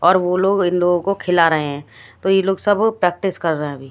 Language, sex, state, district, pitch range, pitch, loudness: Hindi, female, Bihar, Katihar, 160-195 Hz, 180 Hz, -17 LUFS